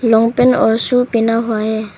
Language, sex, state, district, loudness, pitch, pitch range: Hindi, female, Arunachal Pradesh, Papum Pare, -14 LUFS, 230 Hz, 225-245 Hz